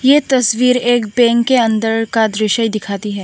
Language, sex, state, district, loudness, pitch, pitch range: Hindi, female, Tripura, West Tripura, -14 LUFS, 230 Hz, 215-250 Hz